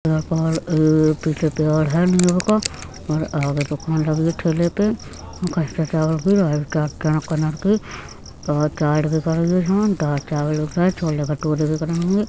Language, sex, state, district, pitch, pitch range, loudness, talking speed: Hindi, female, Uttar Pradesh, Etah, 160 Hz, 155-175 Hz, -20 LUFS, 160 wpm